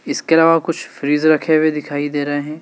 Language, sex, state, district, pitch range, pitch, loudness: Hindi, male, Madhya Pradesh, Dhar, 145-165 Hz, 155 Hz, -16 LUFS